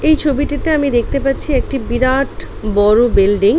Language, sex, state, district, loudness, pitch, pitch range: Bengali, female, West Bengal, Paschim Medinipur, -15 LUFS, 270 Hz, 230-285 Hz